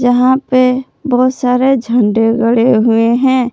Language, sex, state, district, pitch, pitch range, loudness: Hindi, female, Jharkhand, Palamu, 250 Hz, 235-260 Hz, -12 LUFS